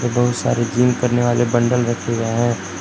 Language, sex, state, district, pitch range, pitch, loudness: Hindi, male, Jharkhand, Palamu, 115-120 Hz, 120 Hz, -18 LUFS